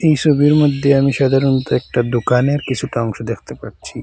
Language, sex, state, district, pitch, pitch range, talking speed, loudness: Bengali, male, Assam, Hailakandi, 135 Hz, 120-140 Hz, 165 wpm, -16 LUFS